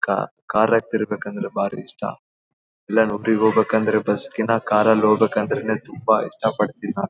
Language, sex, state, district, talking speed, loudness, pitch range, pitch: Kannada, male, Karnataka, Bellary, 170 wpm, -21 LUFS, 105-110 Hz, 110 Hz